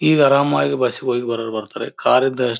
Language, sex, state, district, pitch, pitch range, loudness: Kannada, male, Karnataka, Bellary, 125 Hz, 115-135 Hz, -18 LUFS